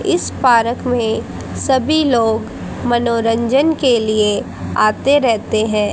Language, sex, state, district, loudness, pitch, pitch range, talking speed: Hindi, female, Haryana, Charkhi Dadri, -15 LUFS, 235 Hz, 220-265 Hz, 110 wpm